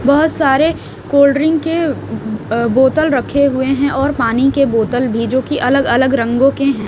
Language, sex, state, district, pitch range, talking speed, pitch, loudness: Hindi, female, Haryana, Rohtak, 245-285 Hz, 185 wpm, 275 Hz, -14 LUFS